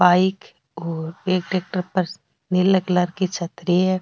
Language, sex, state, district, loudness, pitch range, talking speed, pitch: Rajasthani, female, Rajasthan, Nagaur, -22 LUFS, 175-185 Hz, 150 wpm, 180 Hz